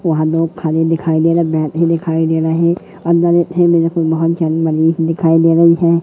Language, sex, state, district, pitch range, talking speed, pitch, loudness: Hindi, female, Madhya Pradesh, Katni, 160-170 Hz, 180 wpm, 165 Hz, -14 LUFS